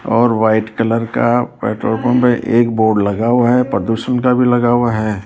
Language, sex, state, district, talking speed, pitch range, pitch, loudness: Hindi, male, Rajasthan, Jaipur, 195 wpm, 110-120 Hz, 115 Hz, -14 LUFS